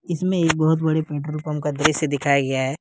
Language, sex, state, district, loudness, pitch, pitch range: Hindi, male, Jharkhand, Ranchi, -21 LUFS, 155 Hz, 145-160 Hz